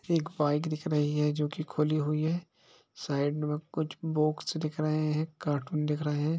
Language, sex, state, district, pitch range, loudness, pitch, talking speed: Hindi, male, Bihar, East Champaran, 150-155 Hz, -31 LUFS, 150 Hz, 195 wpm